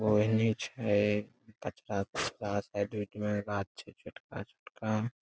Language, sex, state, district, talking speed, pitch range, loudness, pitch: Maithili, male, Bihar, Saharsa, 115 wpm, 100-110 Hz, -34 LUFS, 105 Hz